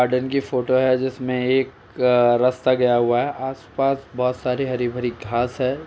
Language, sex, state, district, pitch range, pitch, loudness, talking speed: Hindi, male, Uttar Pradesh, Etah, 125-130 Hz, 125 Hz, -21 LUFS, 165 wpm